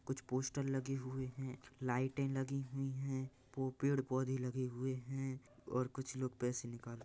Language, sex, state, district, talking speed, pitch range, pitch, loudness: Hindi, male, Chhattisgarh, Rajnandgaon, 180 wpm, 130-135 Hz, 130 Hz, -41 LUFS